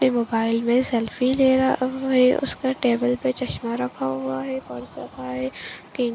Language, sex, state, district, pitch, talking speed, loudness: Hindi, female, Bihar, Jahanabad, 240 Hz, 175 wpm, -23 LUFS